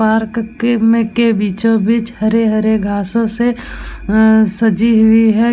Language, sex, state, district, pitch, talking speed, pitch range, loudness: Hindi, female, Bihar, Vaishali, 225 Hz, 130 wpm, 220-230 Hz, -13 LUFS